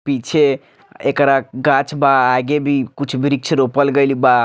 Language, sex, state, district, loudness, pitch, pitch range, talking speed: Bhojpuri, male, Bihar, Muzaffarpur, -16 LUFS, 140 Hz, 130-140 Hz, 150 wpm